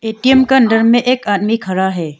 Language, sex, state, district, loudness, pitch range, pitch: Hindi, female, Arunachal Pradesh, Longding, -13 LUFS, 190-255 Hz, 225 Hz